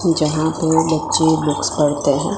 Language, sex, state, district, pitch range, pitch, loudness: Hindi, female, Gujarat, Gandhinagar, 150-160 Hz, 160 Hz, -17 LUFS